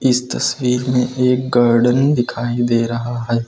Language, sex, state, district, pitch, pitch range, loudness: Hindi, male, Uttar Pradesh, Lucknow, 120 Hz, 120-125 Hz, -16 LUFS